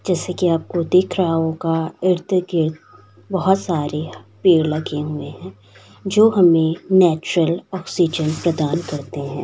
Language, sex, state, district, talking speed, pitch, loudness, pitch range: Hindi, female, Bihar, Saharsa, 120 wpm, 165 Hz, -19 LUFS, 150-180 Hz